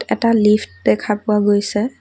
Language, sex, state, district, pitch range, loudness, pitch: Assamese, female, Assam, Kamrup Metropolitan, 205-215 Hz, -16 LUFS, 210 Hz